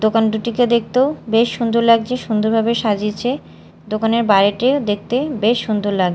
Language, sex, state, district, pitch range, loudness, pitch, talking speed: Bengali, female, Odisha, Malkangiri, 215-240 Hz, -17 LUFS, 225 Hz, 135 wpm